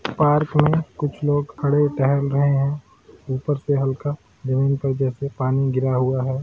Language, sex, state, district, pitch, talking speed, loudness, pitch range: Hindi, male, Bihar, Madhepura, 140 Hz, 170 wpm, -21 LUFS, 130-145 Hz